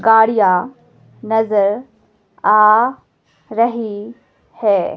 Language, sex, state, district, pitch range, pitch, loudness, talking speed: Hindi, female, Himachal Pradesh, Shimla, 210-230 Hz, 220 Hz, -15 LUFS, 60 wpm